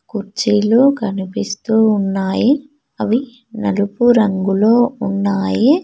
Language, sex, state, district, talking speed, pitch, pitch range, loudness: Telugu, female, Telangana, Mahabubabad, 70 wpm, 215 Hz, 195-240 Hz, -16 LUFS